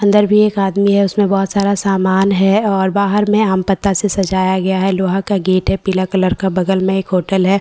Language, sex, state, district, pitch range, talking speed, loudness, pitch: Hindi, female, Bihar, Katihar, 190-200 Hz, 255 wpm, -14 LUFS, 195 Hz